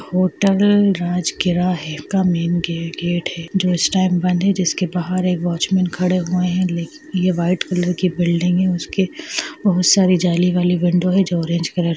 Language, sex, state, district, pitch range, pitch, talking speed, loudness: Hindi, female, Bihar, Gaya, 175-185 Hz, 180 Hz, 160 wpm, -18 LUFS